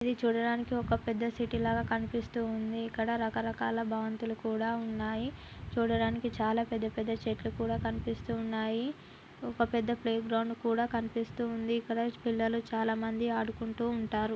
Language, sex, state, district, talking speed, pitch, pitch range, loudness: Telugu, female, Telangana, Karimnagar, 135 wpm, 230 Hz, 220-235 Hz, -33 LUFS